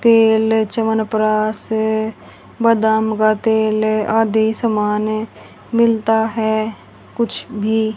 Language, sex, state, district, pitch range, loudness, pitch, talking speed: Hindi, female, Haryana, Rohtak, 215-225 Hz, -17 LUFS, 220 Hz, 115 wpm